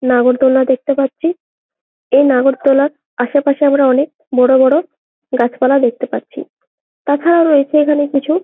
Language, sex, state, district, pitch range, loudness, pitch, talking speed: Bengali, female, West Bengal, Jalpaiguri, 260-295 Hz, -13 LUFS, 275 Hz, 140 wpm